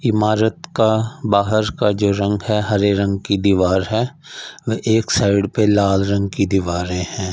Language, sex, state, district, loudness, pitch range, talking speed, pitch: Hindi, male, Punjab, Fazilka, -18 LUFS, 100-110 Hz, 170 wpm, 105 Hz